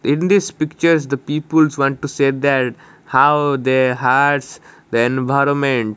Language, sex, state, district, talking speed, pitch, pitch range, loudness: English, male, Odisha, Malkangiri, 140 wpm, 140 Hz, 130-150 Hz, -16 LUFS